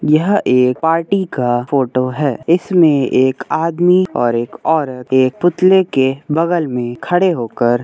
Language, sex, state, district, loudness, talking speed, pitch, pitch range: Hindi, male, Uttar Pradesh, Hamirpur, -15 LUFS, 155 wpm, 145 Hz, 125-175 Hz